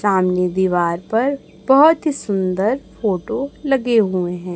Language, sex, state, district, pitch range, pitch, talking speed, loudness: Hindi, male, Chhattisgarh, Raipur, 185-270 Hz, 205 Hz, 130 wpm, -18 LUFS